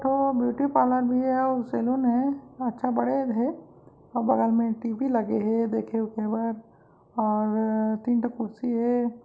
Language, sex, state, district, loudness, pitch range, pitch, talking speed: Chhattisgarhi, female, Chhattisgarh, Raigarh, -26 LUFS, 225-255 Hz, 240 Hz, 160 wpm